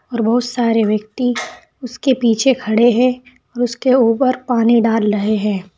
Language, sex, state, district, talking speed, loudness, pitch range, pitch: Hindi, female, Uttar Pradesh, Saharanpur, 145 wpm, -16 LUFS, 225-250 Hz, 235 Hz